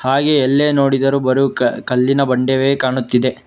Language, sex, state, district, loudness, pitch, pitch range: Kannada, male, Karnataka, Bangalore, -15 LUFS, 135 Hz, 130-135 Hz